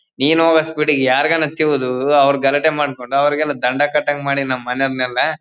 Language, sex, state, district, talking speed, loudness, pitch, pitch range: Kannada, male, Karnataka, Bellary, 155 wpm, -16 LUFS, 145 Hz, 135-150 Hz